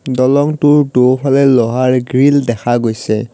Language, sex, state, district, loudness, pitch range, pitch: Assamese, male, Assam, Kamrup Metropolitan, -12 LUFS, 120-140 Hz, 130 Hz